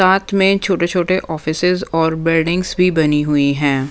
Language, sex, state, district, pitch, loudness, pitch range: Hindi, female, Punjab, Pathankot, 170 Hz, -16 LUFS, 155-185 Hz